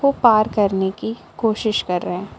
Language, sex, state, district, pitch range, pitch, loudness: Hindi, female, Jharkhand, Palamu, 190-225 Hz, 215 Hz, -19 LUFS